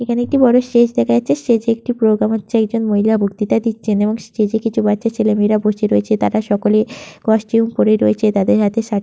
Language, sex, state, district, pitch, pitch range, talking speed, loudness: Bengali, female, West Bengal, Purulia, 215 Hz, 205-225 Hz, 185 wpm, -16 LUFS